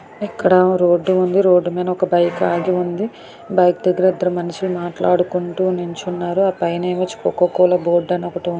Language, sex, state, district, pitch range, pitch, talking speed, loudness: Telugu, female, Andhra Pradesh, Anantapur, 175-185 Hz, 180 Hz, 165 wpm, -17 LUFS